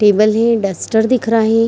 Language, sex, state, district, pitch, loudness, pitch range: Hindi, female, Bihar, Kishanganj, 225 Hz, -14 LUFS, 210-230 Hz